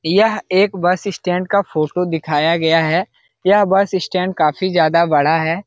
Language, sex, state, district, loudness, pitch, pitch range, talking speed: Hindi, male, Bihar, Jahanabad, -16 LUFS, 180 Hz, 160-190 Hz, 190 wpm